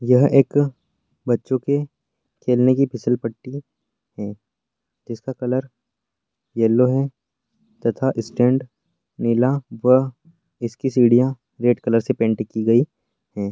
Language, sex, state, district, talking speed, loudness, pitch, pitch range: Angika, male, Bihar, Madhepura, 125 wpm, -20 LUFS, 125 Hz, 115-135 Hz